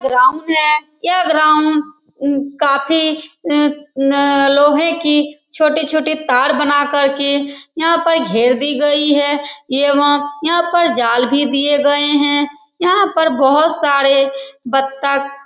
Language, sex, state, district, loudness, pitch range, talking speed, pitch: Hindi, female, Bihar, Saran, -12 LUFS, 280-310 Hz, 125 wpm, 290 Hz